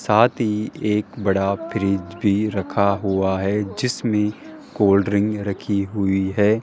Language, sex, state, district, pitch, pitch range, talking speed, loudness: Hindi, male, Rajasthan, Jaipur, 100 Hz, 100-105 Hz, 135 wpm, -21 LUFS